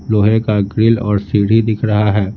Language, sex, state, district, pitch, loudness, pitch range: Hindi, male, Bihar, Patna, 105 Hz, -14 LUFS, 105-110 Hz